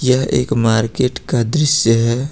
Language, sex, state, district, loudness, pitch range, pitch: Hindi, male, Jharkhand, Ranchi, -15 LUFS, 115-135 Hz, 125 Hz